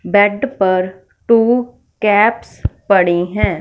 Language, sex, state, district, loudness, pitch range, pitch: Hindi, female, Punjab, Fazilka, -15 LUFS, 185-230 Hz, 205 Hz